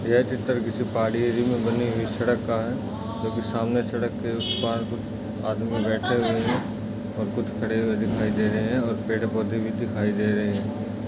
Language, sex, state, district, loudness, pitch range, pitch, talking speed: Hindi, male, Uttar Pradesh, Etah, -25 LUFS, 110-115 Hz, 115 Hz, 185 wpm